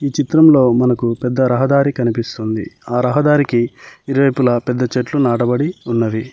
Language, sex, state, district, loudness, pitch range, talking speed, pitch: Telugu, male, Telangana, Mahabubabad, -15 LUFS, 120-140 Hz, 125 wpm, 125 Hz